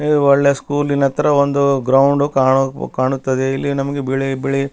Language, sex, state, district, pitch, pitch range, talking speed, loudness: Kannada, male, Karnataka, Bellary, 140 Hz, 135-140 Hz, 150 wpm, -16 LUFS